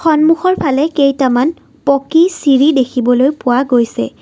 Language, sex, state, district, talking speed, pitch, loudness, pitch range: Assamese, female, Assam, Kamrup Metropolitan, 115 wpm, 275 Hz, -13 LUFS, 250-305 Hz